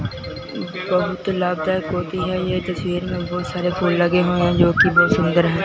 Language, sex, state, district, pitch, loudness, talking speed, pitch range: Hindi, male, Punjab, Fazilka, 180 Hz, -19 LUFS, 180 wpm, 175-180 Hz